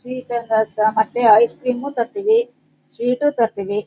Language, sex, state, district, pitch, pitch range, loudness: Kannada, female, Karnataka, Shimoga, 235 Hz, 220-255 Hz, -18 LUFS